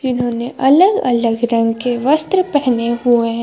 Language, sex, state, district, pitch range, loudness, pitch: Hindi, female, Jharkhand, Garhwa, 235-275 Hz, -15 LUFS, 245 Hz